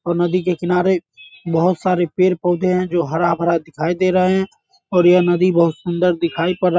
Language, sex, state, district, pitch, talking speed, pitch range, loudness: Hindi, male, Bihar, Bhagalpur, 180 Hz, 205 wpm, 170-185 Hz, -17 LUFS